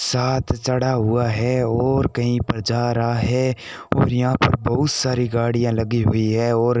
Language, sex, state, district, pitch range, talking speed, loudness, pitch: Hindi, male, Rajasthan, Bikaner, 115-130 Hz, 185 wpm, -20 LUFS, 120 Hz